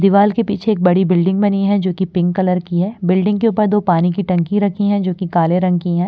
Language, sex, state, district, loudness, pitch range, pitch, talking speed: Hindi, female, Delhi, New Delhi, -16 LUFS, 180-205 Hz, 190 Hz, 275 wpm